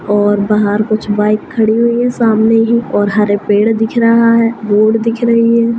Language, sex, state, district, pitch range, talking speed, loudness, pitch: Hindi, female, Maharashtra, Sindhudurg, 210-230 Hz, 195 wpm, -12 LUFS, 220 Hz